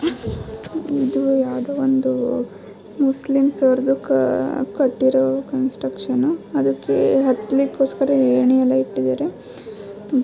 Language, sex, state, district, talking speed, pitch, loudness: Kannada, female, Karnataka, Shimoga, 75 wpm, 255 Hz, -19 LUFS